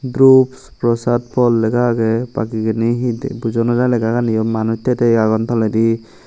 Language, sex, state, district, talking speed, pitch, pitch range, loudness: Chakma, male, Tripura, Unakoti, 155 wpm, 115 Hz, 115-120 Hz, -16 LUFS